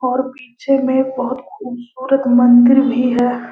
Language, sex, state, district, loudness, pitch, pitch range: Hindi, male, Bihar, Gaya, -14 LUFS, 255 Hz, 245-265 Hz